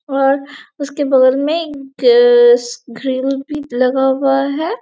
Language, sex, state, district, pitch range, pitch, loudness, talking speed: Hindi, female, Chhattisgarh, Bastar, 265-310 Hz, 275 Hz, -14 LUFS, 110 wpm